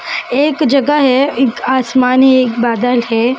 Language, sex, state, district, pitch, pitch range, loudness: Hindi, female, Maharashtra, Mumbai Suburban, 260 Hz, 245-275 Hz, -12 LUFS